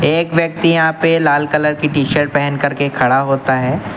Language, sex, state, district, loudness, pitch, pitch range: Hindi, male, Uttar Pradesh, Lucknow, -14 LUFS, 145 Hz, 135-160 Hz